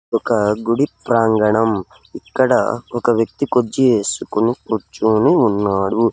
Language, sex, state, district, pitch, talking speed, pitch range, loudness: Telugu, male, Andhra Pradesh, Sri Satya Sai, 110 Hz, 100 wpm, 105-120 Hz, -17 LUFS